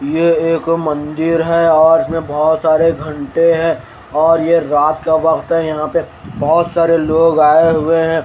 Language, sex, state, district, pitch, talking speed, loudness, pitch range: Hindi, male, Haryana, Rohtak, 160 Hz, 180 wpm, -13 LUFS, 155-165 Hz